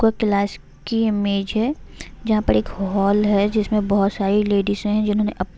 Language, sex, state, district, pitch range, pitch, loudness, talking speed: Hindi, female, Bihar, Sitamarhi, 200-215 Hz, 205 Hz, -20 LUFS, 170 wpm